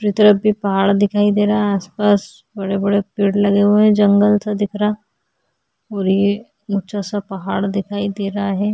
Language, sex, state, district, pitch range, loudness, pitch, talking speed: Hindi, female, Chhattisgarh, Sukma, 200-210 Hz, -17 LUFS, 205 Hz, 190 wpm